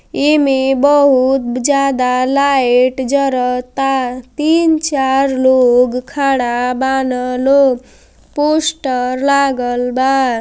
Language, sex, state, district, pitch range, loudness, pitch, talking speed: Bhojpuri, female, Uttar Pradesh, Gorakhpur, 250-280 Hz, -13 LUFS, 265 Hz, 90 wpm